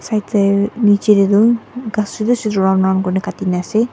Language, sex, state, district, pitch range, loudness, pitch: Nagamese, female, Nagaland, Dimapur, 190-225 Hz, -15 LUFS, 205 Hz